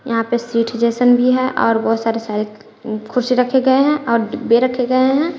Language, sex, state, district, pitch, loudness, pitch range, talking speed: Hindi, female, Bihar, West Champaran, 240 Hz, -16 LUFS, 225-255 Hz, 200 wpm